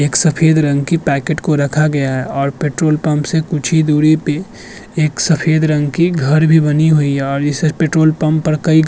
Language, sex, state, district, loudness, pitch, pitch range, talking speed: Hindi, male, Uttar Pradesh, Budaun, -14 LUFS, 155 Hz, 145-160 Hz, 225 wpm